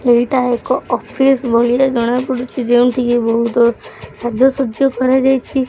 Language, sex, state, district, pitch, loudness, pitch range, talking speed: Odia, female, Odisha, Khordha, 250 Hz, -15 LUFS, 240-265 Hz, 125 wpm